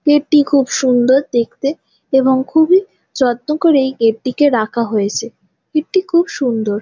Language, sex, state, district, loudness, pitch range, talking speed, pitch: Bengali, female, West Bengal, Jalpaiguri, -15 LUFS, 235-300 Hz, 150 wpm, 265 Hz